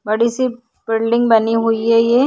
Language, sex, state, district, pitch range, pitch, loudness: Hindi, female, Uttar Pradesh, Hamirpur, 225-240 Hz, 230 Hz, -16 LUFS